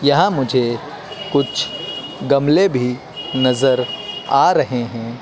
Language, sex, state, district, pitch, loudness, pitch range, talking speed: Hindi, male, Madhya Pradesh, Dhar, 130 Hz, -18 LUFS, 125-145 Hz, 105 wpm